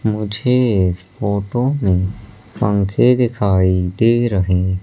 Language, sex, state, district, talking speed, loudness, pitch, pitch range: Hindi, male, Madhya Pradesh, Katni, 100 wpm, -17 LUFS, 100 Hz, 95-115 Hz